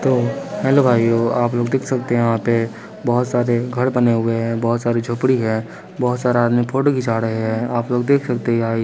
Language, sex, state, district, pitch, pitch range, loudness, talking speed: Hindi, male, Chandigarh, Chandigarh, 120 Hz, 115-125 Hz, -18 LUFS, 230 wpm